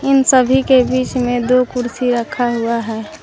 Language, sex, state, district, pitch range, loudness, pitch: Hindi, female, Jharkhand, Garhwa, 240-260 Hz, -15 LUFS, 250 Hz